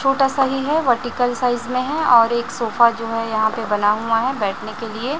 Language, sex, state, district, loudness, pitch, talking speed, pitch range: Hindi, female, Chhattisgarh, Raipur, -19 LUFS, 235 Hz, 245 wpm, 225-260 Hz